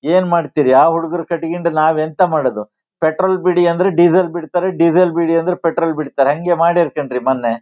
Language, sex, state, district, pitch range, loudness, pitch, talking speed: Kannada, male, Karnataka, Shimoga, 160-180 Hz, -15 LUFS, 170 Hz, 175 wpm